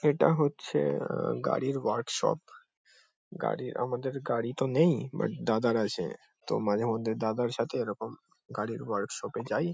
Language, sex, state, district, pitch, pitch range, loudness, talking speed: Bengali, male, West Bengal, Kolkata, 125 Hz, 115-140 Hz, -31 LUFS, 160 wpm